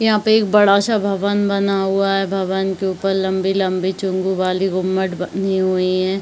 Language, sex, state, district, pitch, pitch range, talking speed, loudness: Hindi, female, Uttar Pradesh, Varanasi, 190 Hz, 190-200 Hz, 185 wpm, -18 LUFS